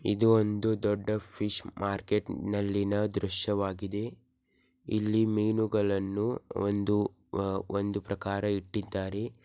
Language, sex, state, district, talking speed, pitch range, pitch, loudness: Kannada, male, Karnataka, Belgaum, 85 wpm, 100-105 Hz, 105 Hz, -30 LUFS